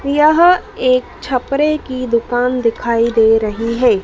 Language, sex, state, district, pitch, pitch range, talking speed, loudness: Hindi, female, Madhya Pradesh, Dhar, 250 Hz, 230-275 Hz, 135 wpm, -15 LUFS